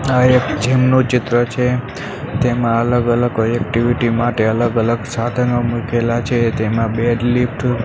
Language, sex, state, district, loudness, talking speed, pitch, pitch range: Gujarati, male, Gujarat, Gandhinagar, -16 LUFS, 145 wpm, 120 Hz, 115-125 Hz